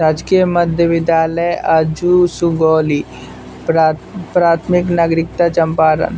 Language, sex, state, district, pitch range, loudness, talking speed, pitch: Hindi, male, Bihar, West Champaran, 160-175 Hz, -14 LUFS, 95 wpm, 165 Hz